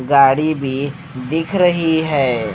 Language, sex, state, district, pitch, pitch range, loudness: Hindi, male, Punjab, Fazilka, 145 Hz, 135-160 Hz, -16 LUFS